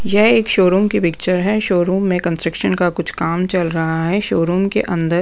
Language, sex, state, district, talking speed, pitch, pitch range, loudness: Hindi, female, Punjab, Pathankot, 220 wpm, 180 Hz, 170-200 Hz, -16 LUFS